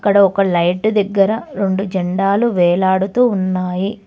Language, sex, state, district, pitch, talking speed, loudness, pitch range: Telugu, female, Telangana, Hyderabad, 195 Hz, 120 wpm, -16 LUFS, 185-205 Hz